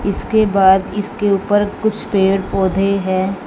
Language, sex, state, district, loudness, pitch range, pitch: Hindi, female, Punjab, Fazilka, -16 LUFS, 190-205 Hz, 195 Hz